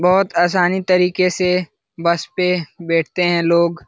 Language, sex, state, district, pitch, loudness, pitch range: Hindi, male, Bihar, Lakhisarai, 180 Hz, -17 LUFS, 170-180 Hz